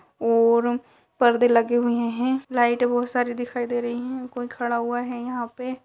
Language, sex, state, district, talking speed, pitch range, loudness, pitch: Hindi, female, Uttar Pradesh, Ghazipur, 185 wpm, 240-245 Hz, -23 LUFS, 240 Hz